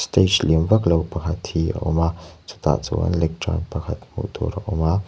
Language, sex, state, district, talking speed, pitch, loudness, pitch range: Mizo, male, Mizoram, Aizawl, 210 wpm, 85 Hz, -22 LUFS, 80-95 Hz